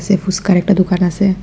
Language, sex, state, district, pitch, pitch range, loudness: Bengali, female, Tripura, West Tripura, 190 Hz, 185-195 Hz, -14 LUFS